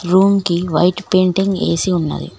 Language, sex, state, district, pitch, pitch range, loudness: Telugu, female, Telangana, Mahabubabad, 185 Hz, 175-195 Hz, -15 LUFS